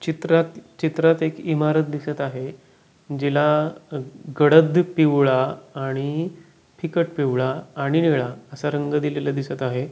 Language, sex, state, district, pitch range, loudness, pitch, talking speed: Marathi, male, Maharashtra, Pune, 140-160 Hz, -21 LUFS, 150 Hz, 115 wpm